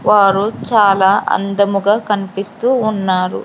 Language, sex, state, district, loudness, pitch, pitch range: Telugu, female, Andhra Pradesh, Sri Satya Sai, -14 LUFS, 200 Hz, 195-210 Hz